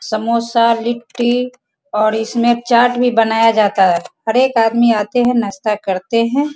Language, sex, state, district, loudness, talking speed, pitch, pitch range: Hindi, female, Bihar, Sitamarhi, -15 LUFS, 155 wpm, 230 Hz, 220-245 Hz